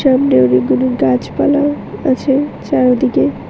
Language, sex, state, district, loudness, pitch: Bengali, female, Tripura, West Tripura, -14 LUFS, 260 Hz